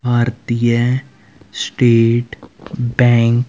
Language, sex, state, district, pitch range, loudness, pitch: Hindi, male, Haryana, Rohtak, 115-125 Hz, -15 LUFS, 120 Hz